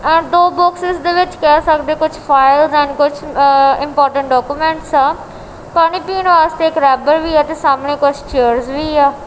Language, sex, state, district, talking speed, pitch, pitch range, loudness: Punjabi, female, Punjab, Kapurthala, 180 wpm, 300 Hz, 280-320 Hz, -13 LUFS